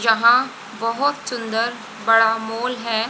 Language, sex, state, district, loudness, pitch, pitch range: Hindi, female, Haryana, Jhajjar, -19 LUFS, 230 Hz, 225-240 Hz